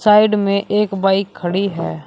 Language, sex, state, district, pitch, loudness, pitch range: Hindi, male, Uttar Pradesh, Shamli, 200 Hz, -17 LUFS, 185-210 Hz